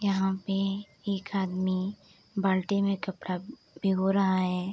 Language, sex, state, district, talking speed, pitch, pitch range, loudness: Hindi, female, Bihar, Darbhanga, 125 wpm, 195 Hz, 185-200 Hz, -29 LUFS